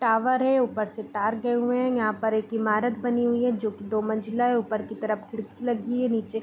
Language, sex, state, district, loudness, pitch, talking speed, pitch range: Hindi, female, Bihar, Vaishali, -26 LUFS, 225 Hz, 260 wpm, 215-245 Hz